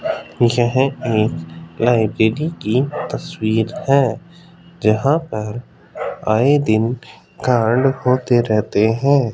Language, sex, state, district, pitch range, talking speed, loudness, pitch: Hindi, male, Rajasthan, Jaipur, 110-140 Hz, 90 wpm, -18 LUFS, 120 Hz